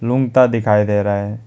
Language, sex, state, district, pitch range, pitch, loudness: Hindi, male, West Bengal, Alipurduar, 105-125 Hz, 110 Hz, -15 LUFS